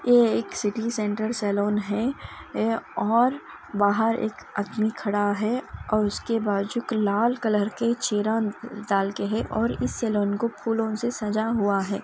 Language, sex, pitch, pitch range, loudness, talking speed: Hindi, female, 215 Hz, 205-230 Hz, -25 LUFS, 145 wpm